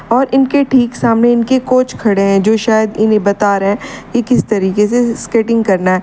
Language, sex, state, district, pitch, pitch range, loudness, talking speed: Hindi, female, Uttar Pradesh, Lalitpur, 225 Hz, 205-245 Hz, -12 LUFS, 210 wpm